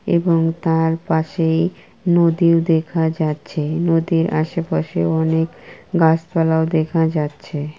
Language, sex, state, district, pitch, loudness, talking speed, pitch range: Bengali, female, West Bengal, Kolkata, 160 Hz, -18 LUFS, 90 wpm, 160-165 Hz